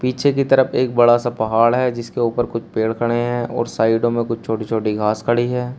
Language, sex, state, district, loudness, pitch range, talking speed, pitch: Hindi, male, Uttar Pradesh, Shamli, -18 LUFS, 115-125 Hz, 240 wpm, 120 Hz